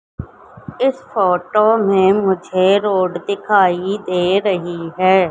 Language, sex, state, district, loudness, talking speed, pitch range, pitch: Hindi, female, Madhya Pradesh, Katni, -16 LUFS, 100 wpm, 180-205 Hz, 190 Hz